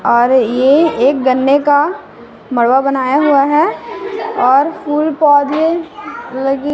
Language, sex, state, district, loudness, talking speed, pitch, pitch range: Hindi, female, Chhattisgarh, Raipur, -12 LUFS, 115 wpm, 285 Hz, 265-310 Hz